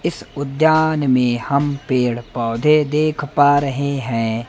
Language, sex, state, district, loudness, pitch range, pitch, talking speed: Hindi, male, Madhya Pradesh, Umaria, -18 LUFS, 125-150 Hz, 140 Hz, 135 wpm